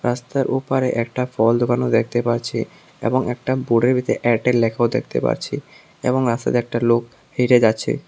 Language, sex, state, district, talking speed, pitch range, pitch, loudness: Bengali, male, Tripura, South Tripura, 170 wpm, 115-125 Hz, 120 Hz, -19 LUFS